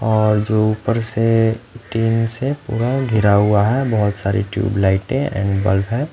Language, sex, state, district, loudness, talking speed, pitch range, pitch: Hindi, male, Punjab, Fazilka, -17 LUFS, 155 wpm, 105-115 Hz, 110 Hz